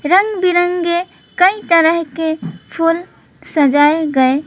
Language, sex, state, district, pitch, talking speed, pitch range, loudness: Hindi, female, West Bengal, Alipurduar, 335 Hz, 120 wpm, 310-355 Hz, -14 LUFS